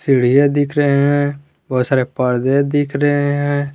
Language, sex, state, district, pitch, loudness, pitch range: Hindi, male, Jharkhand, Garhwa, 140 Hz, -16 LUFS, 135-145 Hz